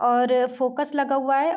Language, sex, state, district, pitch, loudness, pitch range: Hindi, female, Uttar Pradesh, Deoria, 270 Hz, -22 LUFS, 250-280 Hz